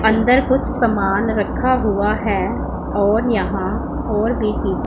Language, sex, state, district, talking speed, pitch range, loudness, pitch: Hindi, female, Punjab, Pathankot, 135 wpm, 205-245 Hz, -18 LUFS, 220 Hz